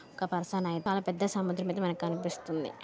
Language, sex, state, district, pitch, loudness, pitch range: Telugu, female, Andhra Pradesh, Anantapur, 180 Hz, -33 LUFS, 170-190 Hz